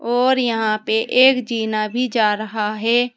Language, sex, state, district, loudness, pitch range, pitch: Hindi, female, Uttar Pradesh, Saharanpur, -18 LUFS, 215-245 Hz, 230 Hz